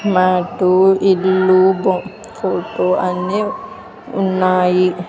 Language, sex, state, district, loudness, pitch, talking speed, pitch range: Telugu, female, Andhra Pradesh, Sri Satya Sai, -15 LUFS, 185 Hz, 70 wpm, 180-195 Hz